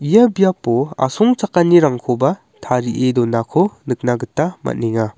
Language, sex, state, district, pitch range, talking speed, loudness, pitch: Garo, male, Meghalaya, West Garo Hills, 125-180 Hz, 95 wpm, -16 LUFS, 135 Hz